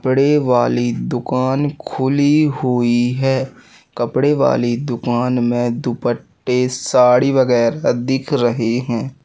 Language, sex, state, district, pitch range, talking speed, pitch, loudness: Hindi, male, Madhya Pradesh, Katni, 120-135 Hz, 105 wpm, 125 Hz, -17 LUFS